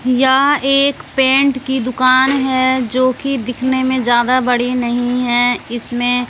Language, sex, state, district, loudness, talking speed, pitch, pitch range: Hindi, female, Bihar, West Champaran, -14 LUFS, 145 wpm, 255 Hz, 245-265 Hz